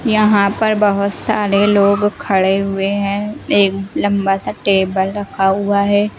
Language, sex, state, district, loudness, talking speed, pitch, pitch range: Hindi, female, Bihar, West Champaran, -15 LUFS, 145 wpm, 200 Hz, 195-205 Hz